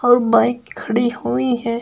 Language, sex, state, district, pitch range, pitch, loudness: Hindi, female, Uttar Pradesh, Shamli, 230-245 Hz, 240 Hz, -18 LUFS